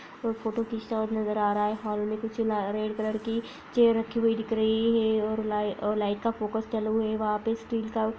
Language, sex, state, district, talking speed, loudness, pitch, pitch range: Hindi, female, Bihar, Lakhisarai, 240 wpm, -28 LUFS, 220 Hz, 215-225 Hz